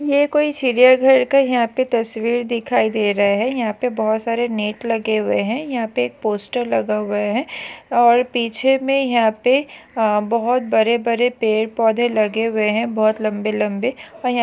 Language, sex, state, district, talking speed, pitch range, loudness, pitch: Hindi, female, Maharashtra, Solapur, 190 wpm, 215-250 Hz, -18 LUFS, 235 Hz